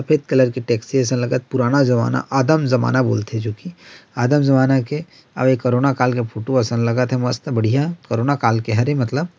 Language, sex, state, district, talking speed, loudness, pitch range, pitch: Chhattisgarhi, male, Chhattisgarh, Rajnandgaon, 200 wpm, -18 LUFS, 120-140 Hz, 130 Hz